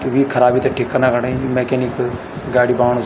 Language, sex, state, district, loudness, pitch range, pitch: Garhwali, male, Uttarakhand, Tehri Garhwal, -17 LUFS, 125-130 Hz, 125 Hz